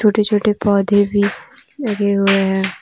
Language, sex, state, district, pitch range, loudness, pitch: Hindi, female, Jharkhand, Deoghar, 200-210 Hz, -16 LUFS, 205 Hz